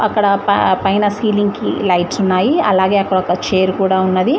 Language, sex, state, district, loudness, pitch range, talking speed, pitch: Telugu, female, Telangana, Mahabubabad, -15 LUFS, 185-205 Hz, 180 wpm, 195 Hz